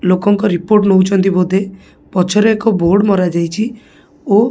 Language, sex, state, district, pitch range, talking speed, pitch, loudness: Odia, male, Odisha, Khordha, 185-210 Hz, 120 wpm, 195 Hz, -13 LUFS